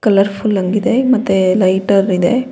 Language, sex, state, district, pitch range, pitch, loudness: Kannada, female, Karnataka, Bangalore, 190-220 Hz, 195 Hz, -14 LUFS